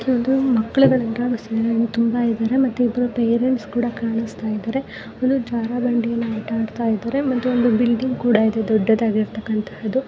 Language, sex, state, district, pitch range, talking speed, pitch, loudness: Kannada, female, Karnataka, Mysore, 225-245 Hz, 120 wpm, 235 Hz, -20 LUFS